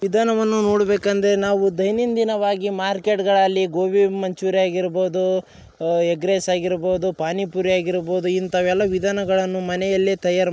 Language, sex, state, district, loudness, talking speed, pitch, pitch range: Kannada, male, Karnataka, Raichur, -20 LUFS, 120 wpm, 190 Hz, 185-200 Hz